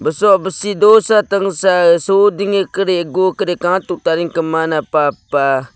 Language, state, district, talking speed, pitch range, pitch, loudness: Nyishi, Arunachal Pradesh, Papum Pare, 115 wpm, 165-200 Hz, 185 Hz, -14 LUFS